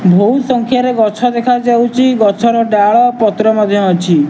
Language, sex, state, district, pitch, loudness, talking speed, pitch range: Odia, male, Odisha, Nuapada, 230 Hz, -11 LUFS, 125 wpm, 205-245 Hz